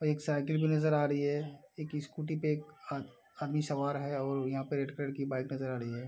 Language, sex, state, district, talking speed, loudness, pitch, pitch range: Hindi, male, Bihar, Araria, 255 wpm, -35 LUFS, 145 Hz, 135-150 Hz